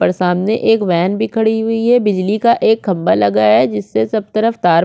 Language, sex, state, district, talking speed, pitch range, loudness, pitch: Hindi, female, Chhattisgarh, Korba, 225 wpm, 175-225 Hz, -14 LUFS, 210 Hz